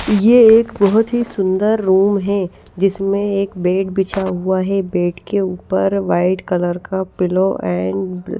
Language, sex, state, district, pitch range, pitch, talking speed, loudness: Hindi, female, Bihar, Patna, 185-200 Hz, 195 Hz, 155 wpm, -16 LUFS